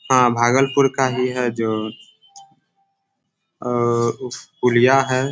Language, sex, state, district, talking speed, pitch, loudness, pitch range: Hindi, male, Bihar, Bhagalpur, 115 wpm, 125 Hz, -18 LUFS, 120-135 Hz